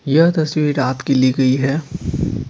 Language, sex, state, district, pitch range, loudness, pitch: Hindi, male, Bihar, Patna, 130-155 Hz, -17 LUFS, 140 Hz